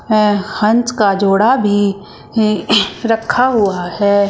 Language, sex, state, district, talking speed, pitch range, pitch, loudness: Hindi, female, Uttar Pradesh, Shamli, 125 wpm, 200-220 Hz, 210 Hz, -14 LUFS